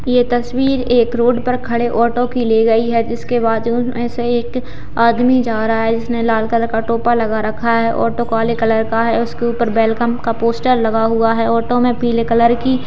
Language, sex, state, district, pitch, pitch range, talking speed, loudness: Hindi, female, Bihar, Gaya, 235 Hz, 225-240 Hz, 225 wpm, -15 LUFS